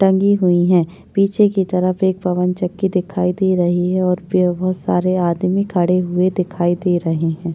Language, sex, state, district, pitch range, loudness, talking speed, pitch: Hindi, female, Maharashtra, Chandrapur, 175-190 Hz, -17 LUFS, 175 wpm, 180 Hz